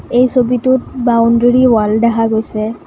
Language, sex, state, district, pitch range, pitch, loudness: Assamese, female, Assam, Kamrup Metropolitan, 225-250 Hz, 235 Hz, -12 LUFS